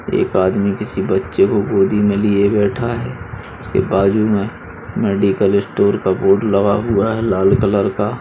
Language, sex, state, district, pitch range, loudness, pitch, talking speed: Hindi, male, Uttar Pradesh, Budaun, 100-110 Hz, -16 LUFS, 100 Hz, 170 wpm